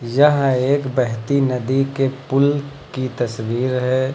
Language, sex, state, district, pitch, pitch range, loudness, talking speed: Hindi, male, Uttar Pradesh, Lucknow, 130 Hz, 125-140 Hz, -19 LUFS, 130 wpm